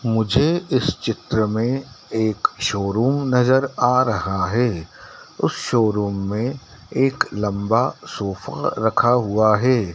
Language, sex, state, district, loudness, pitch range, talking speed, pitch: Hindi, male, Madhya Pradesh, Dhar, -20 LUFS, 105-130 Hz, 115 wpm, 115 Hz